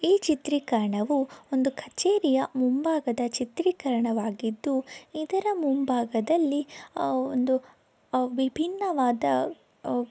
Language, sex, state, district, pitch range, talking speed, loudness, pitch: Kannada, female, Karnataka, Dakshina Kannada, 250-315 Hz, 75 wpm, -27 LUFS, 265 Hz